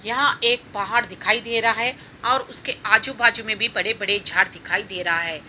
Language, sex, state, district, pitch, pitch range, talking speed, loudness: Hindi, female, Bihar, Saran, 220 Hz, 190-235 Hz, 240 wpm, -20 LUFS